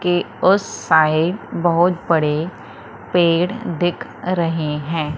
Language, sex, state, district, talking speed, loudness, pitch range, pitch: Hindi, female, Madhya Pradesh, Umaria, 105 wpm, -18 LUFS, 160-180 Hz, 170 Hz